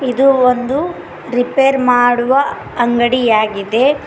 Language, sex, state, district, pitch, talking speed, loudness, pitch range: Kannada, female, Karnataka, Koppal, 250 Hz, 75 wpm, -14 LUFS, 240-270 Hz